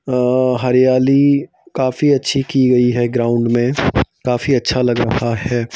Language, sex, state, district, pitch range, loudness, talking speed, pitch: Hindi, male, Madhya Pradesh, Bhopal, 120-130 Hz, -15 LUFS, 145 wpm, 125 Hz